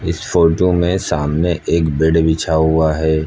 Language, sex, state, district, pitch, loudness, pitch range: Hindi, male, Uttar Pradesh, Lucknow, 80 Hz, -15 LUFS, 80-85 Hz